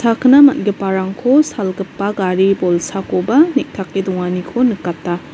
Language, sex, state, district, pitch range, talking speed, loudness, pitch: Garo, female, Meghalaya, North Garo Hills, 185-240 Hz, 90 wpm, -15 LUFS, 195 Hz